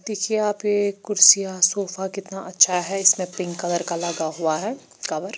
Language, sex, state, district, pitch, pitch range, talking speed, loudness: Hindi, female, Chandigarh, Chandigarh, 190 Hz, 175-205 Hz, 180 wpm, -20 LUFS